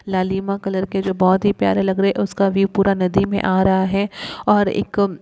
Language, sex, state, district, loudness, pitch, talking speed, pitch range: Hindi, female, Uttar Pradesh, Gorakhpur, -18 LUFS, 195 Hz, 240 wpm, 190-200 Hz